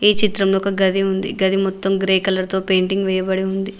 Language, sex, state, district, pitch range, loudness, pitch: Telugu, female, Telangana, Mahabubabad, 190-195 Hz, -18 LUFS, 195 Hz